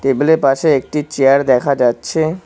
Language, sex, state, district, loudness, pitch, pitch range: Bengali, male, West Bengal, Cooch Behar, -14 LUFS, 140 Hz, 135-155 Hz